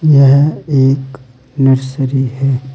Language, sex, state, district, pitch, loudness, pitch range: Hindi, male, Uttar Pradesh, Saharanpur, 135 Hz, -12 LUFS, 130-135 Hz